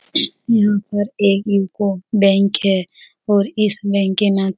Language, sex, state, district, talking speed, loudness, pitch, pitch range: Hindi, female, Bihar, Supaul, 155 wpm, -17 LUFS, 200 Hz, 195-205 Hz